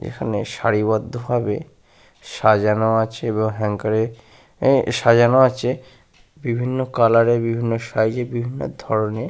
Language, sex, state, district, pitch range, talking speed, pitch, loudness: Bengali, male, West Bengal, Malda, 110-120 Hz, 110 wpm, 115 Hz, -19 LUFS